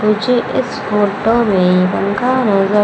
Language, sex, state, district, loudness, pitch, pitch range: Hindi, female, Madhya Pradesh, Umaria, -14 LUFS, 210 Hz, 200-230 Hz